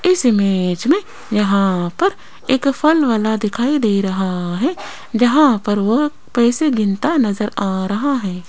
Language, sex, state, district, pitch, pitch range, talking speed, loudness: Hindi, female, Rajasthan, Jaipur, 225 Hz, 200-285 Hz, 150 wpm, -17 LUFS